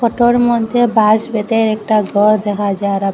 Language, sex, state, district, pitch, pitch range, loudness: Bengali, female, Assam, Hailakandi, 215 Hz, 205-235 Hz, -14 LUFS